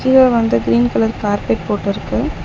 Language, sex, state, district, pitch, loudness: Tamil, female, Tamil Nadu, Chennai, 200 Hz, -16 LUFS